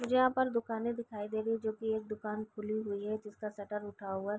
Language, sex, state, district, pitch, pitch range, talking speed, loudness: Hindi, female, Uttar Pradesh, Gorakhpur, 215 Hz, 210-225 Hz, 275 wpm, -36 LUFS